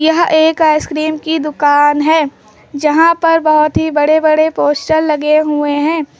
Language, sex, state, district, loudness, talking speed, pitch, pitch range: Hindi, female, Uttar Pradesh, Lucknow, -12 LUFS, 165 wpm, 310 Hz, 300-315 Hz